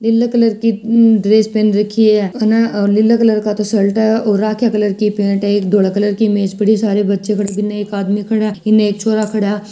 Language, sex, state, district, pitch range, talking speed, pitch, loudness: Hindi, female, Rajasthan, Churu, 205-220 Hz, 190 wpm, 210 Hz, -14 LUFS